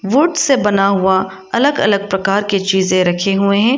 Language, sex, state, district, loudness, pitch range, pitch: Hindi, female, Arunachal Pradesh, Lower Dibang Valley, -14 LUFS, 190-220 Hz, 195 Hz